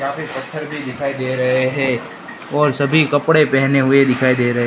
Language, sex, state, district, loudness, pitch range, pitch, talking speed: Hindi, male, Gujarat, Gandhinagar, -16 LUFS, 130-145 Hz, 135 Hz, 190 wpm